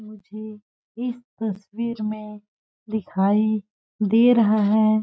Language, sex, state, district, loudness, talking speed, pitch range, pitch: Hindi, female, Chhattisgarh, Balrampur, -22 LUFS, 95 wpm, 210-225 Hz, 215 Hz